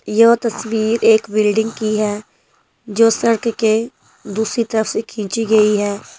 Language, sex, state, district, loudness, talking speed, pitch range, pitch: Hindi, female, Himachal Pradesh, Shimla, -16 LUFS, 145 wpm, 215-230 Hz, 220 Hz